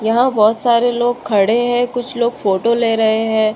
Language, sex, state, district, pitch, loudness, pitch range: Hindi, female, Uttar Pradesh, Muzaffarnagar, 235 Hz, -15 LUFS, 220-240 Hz